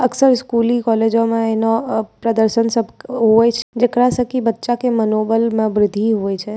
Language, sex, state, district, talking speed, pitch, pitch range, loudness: Angika, female, Bihar, Bhagalpur, 165 wpm, 230 Hz, 220-240 Hz, -16 LUFS